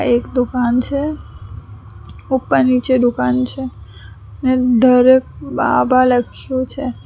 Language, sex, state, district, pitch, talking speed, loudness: Gujarati, female, Gujarat, Valsad, 245 Hz, 95 wpm, -15 LUFS